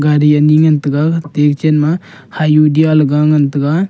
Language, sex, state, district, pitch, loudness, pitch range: Wancho, male, Arunachal Pradesh, Longding, 150 Hz, -12 LUFS, 150-155 Hz